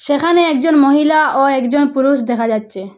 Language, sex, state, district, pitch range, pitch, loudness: Bengali, female, Assam, Hailakandi, 245-300 Hz, 280 Hz, -13 LUFS